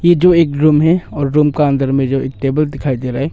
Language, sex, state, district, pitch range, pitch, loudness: Hindi, male, Arunachal Pradesh, Longding, 135-155 Hz, 145 Hz, -14 LUFS